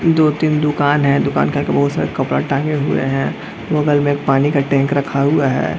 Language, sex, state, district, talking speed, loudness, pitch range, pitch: Hindi, male, Bihar, Gaya, 230 wpm, -16 LUFS, 140-150 Hz, 145 Hz